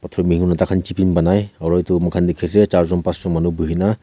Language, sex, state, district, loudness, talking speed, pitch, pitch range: Nagamese, male, Nagaland, Kohima, -17 LUFS, 165 wpm, 90 Hz, 85-95 Hz